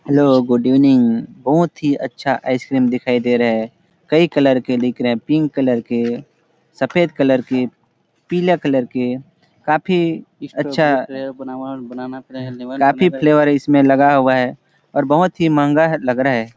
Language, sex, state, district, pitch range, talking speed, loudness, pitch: Hindi, male, Chhattisgarh, Sarguja, 125-150 Hz, 150 wpm, -16 LUFS, 135 Hz